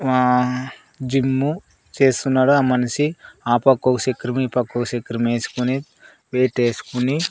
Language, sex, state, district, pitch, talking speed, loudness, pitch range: Telugu, male, Andhra Pradesh, Sri Satya Sai, 130 Hz, 105 wpm, -20 LUFS, 125-135 Hz